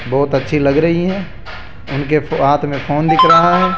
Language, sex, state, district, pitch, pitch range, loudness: Hindi, male, Rajasthan, Jaipur, 145 Hz, 130-155 Hz, -14 LUFS